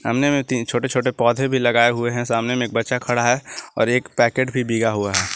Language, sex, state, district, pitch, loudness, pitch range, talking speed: Hindi, male, Jharkhand, Garhwa, 120 Hz, -19 LUFS, 115-125 Hz, 255 wpm